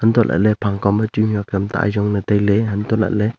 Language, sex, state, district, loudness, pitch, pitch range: Wancho, male, Arunachal Pradesh, Longding, -18 LUFS, 105 Hz, 100-110 Hz